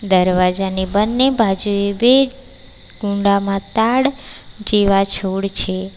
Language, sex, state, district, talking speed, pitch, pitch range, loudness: Gujarati, female, Gujarat, Valsad, 90 wpm, 200 Hz, 195-225 Hz, -16 LUFS